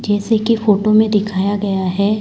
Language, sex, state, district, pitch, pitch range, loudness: Hindi, female, Chhattisgarh, Raipur, 205 Hz, 200-215 Hz, -15 LUFS